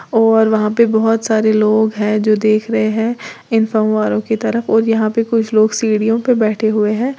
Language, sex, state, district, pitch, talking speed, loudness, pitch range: Hindi, female, Uttar Pradesh, Lalitpur, 220 Hz, 210 wpm, -14 LUFS, 215-225 Hz